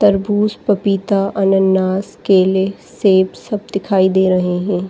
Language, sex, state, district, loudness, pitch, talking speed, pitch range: Hindi, female, Uttar Pradesh, Gorakhpur, -15 LUFS, 195 Hz, 120 wpm, 190-200 Hz